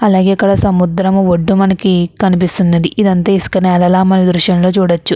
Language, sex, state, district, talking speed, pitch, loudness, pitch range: Telugu, female, Andhra Pradesh, Krishna, 130 wpm, 185 Hz, -11 LUFS, 180-195 Hz